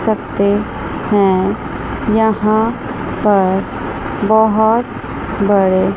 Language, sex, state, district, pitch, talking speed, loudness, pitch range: Hindi, female, Chandigarh, Chandigarh, 205 Hz, 60 wpm, -15 LUFS, 195-220 Hz